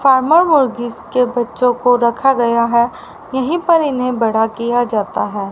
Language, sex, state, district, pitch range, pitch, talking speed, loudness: Hindi, female, Haryana, Rohtak, 235-270 Hz, 245 Hz, 165 wpm, -15 LUFS